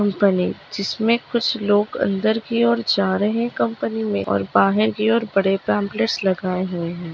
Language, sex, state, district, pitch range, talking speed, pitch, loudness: Hindi, female, Maharashtra, Dhule, 185-220 Hz, 160 wpm, 200 Hz, -20 LUFS